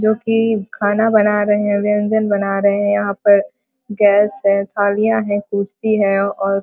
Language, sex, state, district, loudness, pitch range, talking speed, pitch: Hindi, female, Bihar, Vaishali, -16 LUFS, 200-215 Hz, 180 wpm, 205 Hz